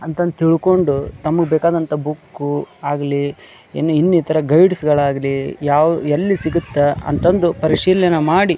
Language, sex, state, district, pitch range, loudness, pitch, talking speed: Kannada, male, Karnataka, Dharwad, 145-170 Hz, -16 LUFS, 155 Hz, 110 wpm